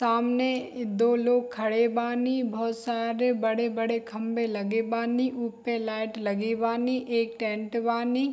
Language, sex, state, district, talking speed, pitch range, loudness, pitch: Hindi, female, Bihar, Saharsa, 130 wpm, 225-240 Hz, -27 LUFS, 230 Hz